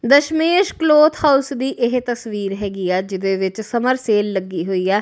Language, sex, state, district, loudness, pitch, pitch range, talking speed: Punjabi, female, Punjab, Kapurthala, -18 LUFS, 235 Hz, 195-275 Hz, 180 wpm